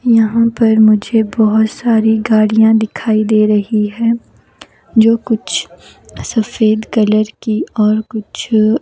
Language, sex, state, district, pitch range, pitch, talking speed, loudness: Hindi, female, Himachal Pradesh, Shimla, 215-225 Hz, 220 Hz, 115 wpm, -13 LUFS